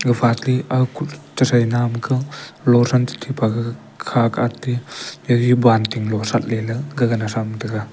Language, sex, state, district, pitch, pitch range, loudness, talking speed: Wancho, male, Arunachal Pradesh, Longding, 120 Hz, 115-125 Hz, -19 LUFS, 195 wpm